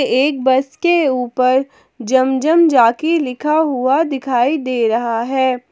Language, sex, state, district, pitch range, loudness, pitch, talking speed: Hindi, female, Jharkhand, Palamu, 250-295 Hz, -15 LUFS, 260 Hz, 135 wpm